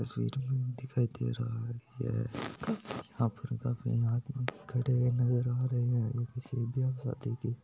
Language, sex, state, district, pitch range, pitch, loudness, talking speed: Hindi, male, Rajasthan, Nagaur, 120-130 Hz, 125 Hz, -34 LUFS, 155 wpm